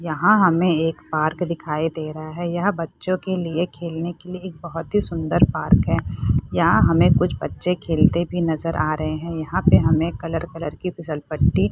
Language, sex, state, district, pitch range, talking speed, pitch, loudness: Hindi, female, Bihar, Saharsa, 155-175 Hz, 200 wpm, 165 Hz, -21 LUFS